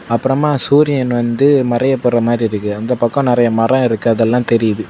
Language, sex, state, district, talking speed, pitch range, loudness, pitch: Tamil, male, Tamil Nadu, Kanyakumari, 160 wpm, 115-130 Hz, -14 LUFS, 120 Hz